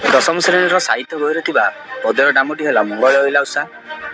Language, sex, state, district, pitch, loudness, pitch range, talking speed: Odia, male, Odisha, Malkangiri, 150 Hz, -15 LUFS, 140-180 Hz, 175 wpm